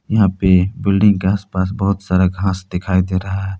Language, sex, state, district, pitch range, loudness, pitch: Hindi, male, Jharkhand, Palamu, 95-100 Hz, -17 LUFS, 95 Hz